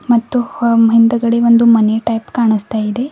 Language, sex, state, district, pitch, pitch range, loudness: Kannada, female, Karnataka, Bidar, 230 Hz, 225-235 Hz, -13 LUFS